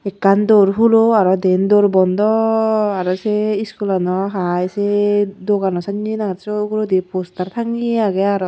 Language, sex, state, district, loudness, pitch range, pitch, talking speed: Chakma, female, Tripura, Unakoti, -16 LUFS, 190-215 Hz, 205 Hz, 155 wpm